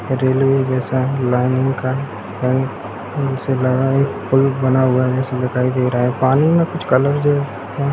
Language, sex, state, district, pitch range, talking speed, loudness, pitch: Hindi, male, Bihar, Gaya, 125-135 Hz, 115 wpm, -17 LUFS, 130 Hz